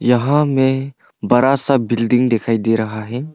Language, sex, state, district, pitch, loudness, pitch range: Hindi, male, Arunachal Pradesh, Papum Pare, 125 Hz, -16 LUFS, 115-135 Hz